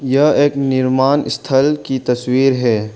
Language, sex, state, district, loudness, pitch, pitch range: Hindi, male, Arunachal Pradesh, Longding, -15 LUFS, 135 Hz, 130-140 Hz